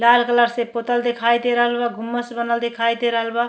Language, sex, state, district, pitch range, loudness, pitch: Bhojpuri, female, Uttar Pradesh, Deoria, 235-240 Hz, -19 LUFS, 235 Hz